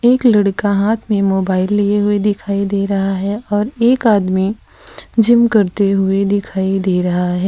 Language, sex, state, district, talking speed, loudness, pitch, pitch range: Hindi, female, Gujarat, Valsad, 170 wpm, -15 LUFS, 200 Hz, 195-210 Hz